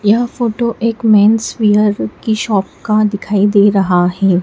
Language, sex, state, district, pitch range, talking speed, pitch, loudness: Hindi, female, Madhya Pradesh, Dhar, 200-225 Hz, 160 wpm, 210 Hz, -13 LUFS